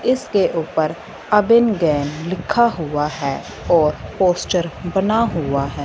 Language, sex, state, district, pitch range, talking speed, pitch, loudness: Hindi, female, Punjab, Fazilka, 150-200 Hz, 125 wpm, 170 Hz, -18 LUFS